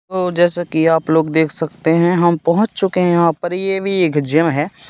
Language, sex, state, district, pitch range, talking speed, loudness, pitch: Hindi, male, Madhya Pradesh, Katni, 160-180 Hz, 235 wpm, -15 LUFS, 170 Hz